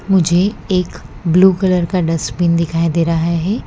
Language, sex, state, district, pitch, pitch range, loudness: Hindi, female, Gujarat, Valsad, 175 Hz, 165-185 Hz, -15 LUFS